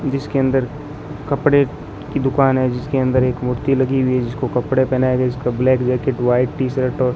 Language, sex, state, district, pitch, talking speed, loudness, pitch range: Hindi, male, Rajasthan, Bikaner, 130 Hz, 210 wpm, -18 LUFS, 125-135 Hz